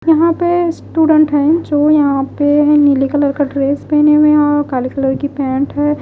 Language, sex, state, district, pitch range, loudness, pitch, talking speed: Hindi, female, Bihar, West Champaran, 280-305 Hz, -13 LUFS, 290 Hz, 190 wpm